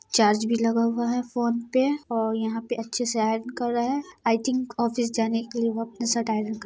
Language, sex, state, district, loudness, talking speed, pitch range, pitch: Hindi, female, Bihar, Muzaffarpur, -25 LUFS, 260 wpm, 225-245 Hz, 235 Hz